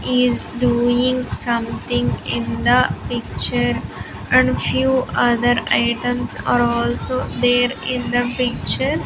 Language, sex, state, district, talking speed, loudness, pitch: English, female, Andhra Pradesh, Sri Satya Sai, 105 wpm, -18 LUFS, 235 Hz